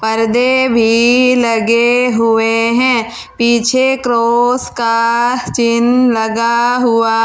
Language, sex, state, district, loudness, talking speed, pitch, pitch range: Hindi, female, Uttar Pradesh, Saharanpur, -12 LUFS, 90 wpm, 235 Hz, 230-245 Hz